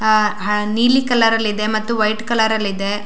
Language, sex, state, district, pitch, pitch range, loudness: Kannada, female, Karnataka, Shimoga, 215 Hz, 210-225 Hz, -17 LUFS